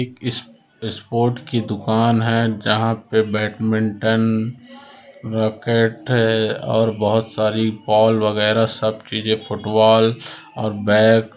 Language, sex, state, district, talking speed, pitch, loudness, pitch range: Hindi, female, Rajasthan, Nagaur, 110 wpm, 110 Hz, -18 LUFS, 110-115 Hz